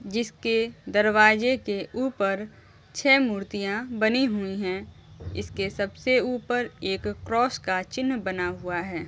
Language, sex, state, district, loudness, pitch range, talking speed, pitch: Hindi, female, Uttar Pradesh, Jyotiba Phule Nagar, -25 LUFS, 190-240 Hz, 125 wpm, 205 Hz